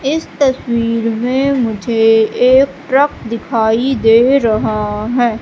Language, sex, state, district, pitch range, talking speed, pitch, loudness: Hindi, female, Madhya Pradesh, Katni, 225-265 Hz, 110 wpm, 230 Hz, -13 LUFS